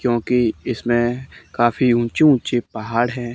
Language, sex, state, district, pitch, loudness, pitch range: Hindi, male, Haryana, Charkhi Dadri, 120 Hz, -19 LUFS, 120-125 Hz